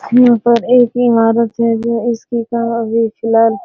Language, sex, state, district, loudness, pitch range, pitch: Hindi, female, Bihar, Araria, -13 LUFS, 230-240 Hz, 235 Hz